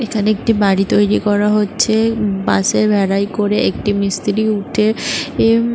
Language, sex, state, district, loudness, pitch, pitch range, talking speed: Bengali, female, West Bengal, Paschim Medinipur, -15 LUFS, 210 Hz, 200-220 Hz, 145 wpm